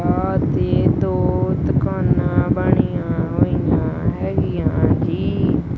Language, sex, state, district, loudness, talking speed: Punjabi, male, Punjab, Kapurthala, -19 LUFS, 85 wpm